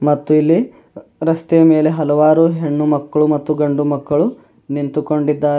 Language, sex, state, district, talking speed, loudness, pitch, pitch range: Kannada, male, Karnataka, Bidar, 120 wpm, -15 LUFS, 150 Hz, 145-155 Hz